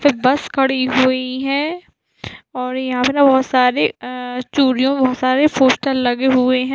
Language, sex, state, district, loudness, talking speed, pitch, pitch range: Hindi, female, Bihar, East Champaran, -16 LUFS, 150 wpm, 260 Hz, 255-270 Hz